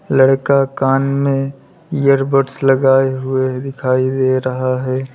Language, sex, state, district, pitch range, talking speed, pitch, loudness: Hindi, male, Uttar Pradesh, Lalitpur, 130-135 Hz, 115 wpm, 135 Hz, -15 LUFS